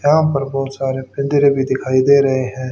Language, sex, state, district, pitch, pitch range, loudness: Hindi, male, Haryana, Charkhi Dadri, 135 Hz, 130-140 Hz, -16 LUFS